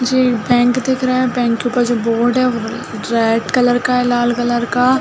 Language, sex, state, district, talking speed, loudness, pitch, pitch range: Hindi, female, Chhattisgarh, Rajnandgaon, 240 wpm, -15 LUFS, 245 Hz, 240-250 Hz